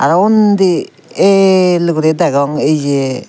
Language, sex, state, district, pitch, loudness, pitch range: Chakma, male, Tripura, Dhalai, 170 Hz, -11 LUFS, 145-190 Hz